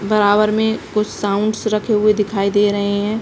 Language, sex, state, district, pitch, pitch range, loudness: Hindi, female, Uttar Pradesh, Budaun, 210 Hz, 205-215 Hz, -17 LUFS